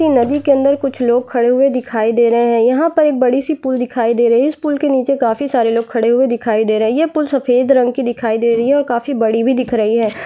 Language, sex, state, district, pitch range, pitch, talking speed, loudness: Hindi, female, Chhattisgarh, Jashpur, 235-275 Hz, 250 Hz, 300 wpm, -14 LUFS